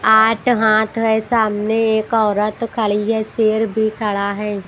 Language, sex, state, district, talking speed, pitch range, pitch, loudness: Hindi, female, Bihar, Katihar, 155 wpm, 210-225 Hz, 220 Hz, -17 LUFS